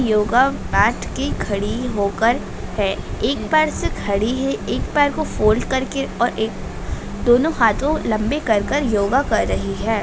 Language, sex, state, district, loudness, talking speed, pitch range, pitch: Hindi, female, Bihar, Begusarai, -19 LUFS, 160 wpm, 215-270 Hz, 230 Hz